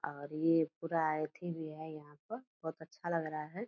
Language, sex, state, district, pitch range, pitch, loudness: Hindi, female, Bihar, Purnia, 155-170 Hz, 160 Hz, -38 LUFS